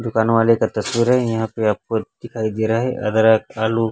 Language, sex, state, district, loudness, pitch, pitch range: Hindi, male, Chhattisgarh, Raipur, -19 LUFS, 110 Hz, 110-115 Hz